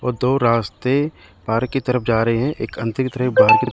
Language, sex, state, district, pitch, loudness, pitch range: Hindi, male, Chandigarh, Chandigarh, 125 Hz, -19 LUFS, 115-130 Hz